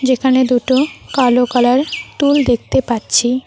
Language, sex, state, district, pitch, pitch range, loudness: Bengali, female, West Bengal, Cooch Behar, 255 Hz, 245-265 Hz, -14 LUFS